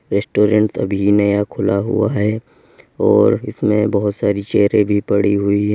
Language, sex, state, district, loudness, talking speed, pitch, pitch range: Hindi, male, Uttar Pradesh, Lalitpur, -16 LUFS, 155 wpm, 105 Hz, 100-105 Hz